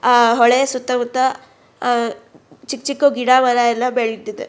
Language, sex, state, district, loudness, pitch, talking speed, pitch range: Kannada, female, Karnataka, Shimoga, -16 LUFS, 250 Hz, 145 wpm, 235-260 Hz